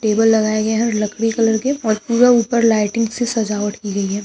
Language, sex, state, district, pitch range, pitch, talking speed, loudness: Hindi, female, Bihar, Lakhisarai, 210-230 Hz, 225 Hz, 240 wpm, -17 LUFS